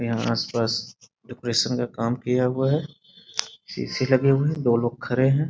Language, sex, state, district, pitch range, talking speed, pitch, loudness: Hindi, male, Bihar, Sitamarhi, 120-135 Hz, 185 wpm, 125 Hz, -24 LUFS